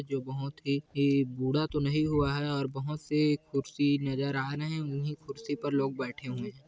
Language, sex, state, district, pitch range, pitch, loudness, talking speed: Hindi, male, Chhattisgarh, Kabirdham, 135-150 Hz, 140 Hz, -31 LUFS, 195 wpm